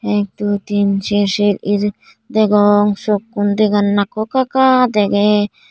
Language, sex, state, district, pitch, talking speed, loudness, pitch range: Chakma, female, Tripura, Dhalai, 205 Hz, 135 wpm, -15 LUFS, 205-215 Hz